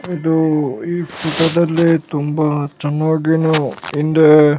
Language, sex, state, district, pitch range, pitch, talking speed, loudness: Kannada, male, Karnataka, Bellary, 150-165 Hz, 155 Hz, 105 wpm, -16 LUFS